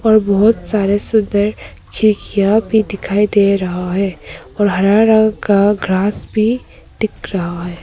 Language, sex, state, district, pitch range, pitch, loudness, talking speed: Hindi, female, Arunachal Pradesh, Papum Pare, 195-215 Hz, 205 Hz, -15 LUFS, 145 wpm